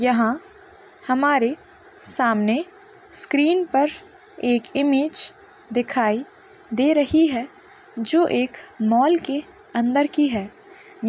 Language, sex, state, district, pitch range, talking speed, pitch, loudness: Hindi, female, Chhattisgarh, Kabirdham, 245-390 Hz, 110 wpm, 295 Hz, -21 LUFS